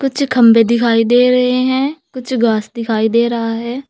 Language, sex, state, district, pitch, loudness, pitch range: Hindi, female, Uttar Pradesh, Saharanpur, 240 Hz, -14 LUFS, 230-255 Hz